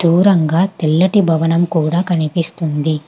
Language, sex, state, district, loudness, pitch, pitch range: Telugu, female, Telangana, Hyderabad, -14 LUFS, 165 Hz, 160-180 Hz